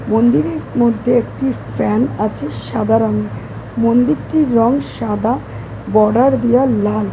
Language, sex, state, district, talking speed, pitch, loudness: Bengali, female, West Bengal, Jalpaiguri, 120 wpm, 225 Hz, -16 LUFS